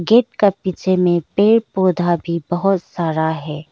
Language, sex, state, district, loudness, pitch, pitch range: Hindi, female, Arunachal Pradesh, Lower Dibang Valley, -17 LUFS, 180 Hz, 170-195 Hz